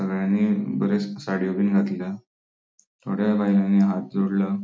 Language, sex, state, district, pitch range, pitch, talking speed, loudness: Konkani, male, Goa, North and South Goa, 95-105 Hz, 100 Hz, 115 wpm, -23 LUFS